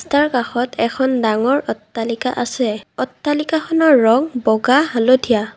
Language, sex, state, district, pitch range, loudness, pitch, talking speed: Assamese, female, Assam, Kamrup Metropolitan, 230-285 Hz, -17 LUFS, 245 Hz, 110 wpm